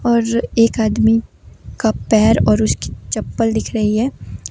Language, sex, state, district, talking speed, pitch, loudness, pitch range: Hindi, female, Himachal Pradesh, Shimla, 145 wpm, 225 Hz, -16 LUFS, 220-235 Hz